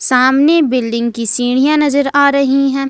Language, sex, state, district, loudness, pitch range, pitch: Hindi, female, Jharkhand, Ranchi, -12 LUFS, 250-285 Hz, 275 Hz